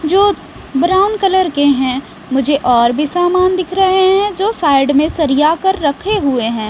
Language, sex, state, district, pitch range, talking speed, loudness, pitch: Hindi, female, Bihar, West Champaran, 280-380 Hz, 180 wpm, -13 LUFS, 320 Hz